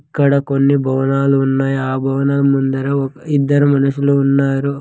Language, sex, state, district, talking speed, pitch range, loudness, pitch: Telugu, male, Andhra Pradesh, Sri Satya Sai, 135 wpm, 135-140 Hz, -15 LUFS, 140 Hz